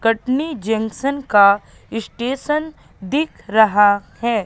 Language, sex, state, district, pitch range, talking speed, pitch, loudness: Hindi, female, Madhya Pradesh, Katni, 210-275 Hz, 95 wpm, 225 Hz, -18 LUFS